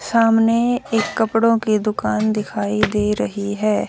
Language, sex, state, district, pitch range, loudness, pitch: Hindi, female, Haryana, Rohtak, 205-225 Hz, -18 LUFS, 215 Hz